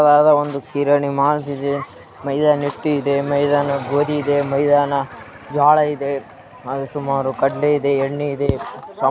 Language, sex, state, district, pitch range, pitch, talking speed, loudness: Kannada, male, Karnataka, Raichur, 140-145 Hz, 145 Hz, 120 wpm, -18 LUFS